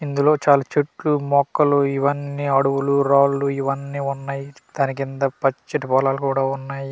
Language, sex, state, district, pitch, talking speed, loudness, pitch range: Telugu, male, Andhra Pradesh, Manyam, 140 Hz, 130 wpm, -20 LUFS, 135-140 Hz